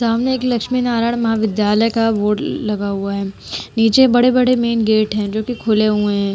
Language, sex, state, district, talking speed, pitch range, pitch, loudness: Hindi, female, Bihar, Vaishali, 190 wpm, 210-240 Hz, 225 Hz, -16 LUFS